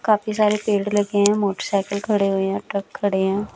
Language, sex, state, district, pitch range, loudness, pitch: Hindi, female, Chandigarh, Chandigarh, 195-210 Hz, -21 LUFS, 205 Hz